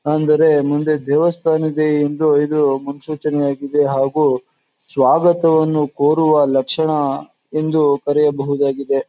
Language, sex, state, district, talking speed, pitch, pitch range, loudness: Kannada, male, Karnataka, Chamarajanagar, 100 wpm, 150 Hz, 140-155 Hz, -16 LUFS